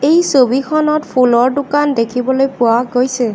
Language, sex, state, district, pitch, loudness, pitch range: Assamese, female, Assam, Kamrup Metropolitan, 260 Hz, -13 LUFS, 245-290 Hz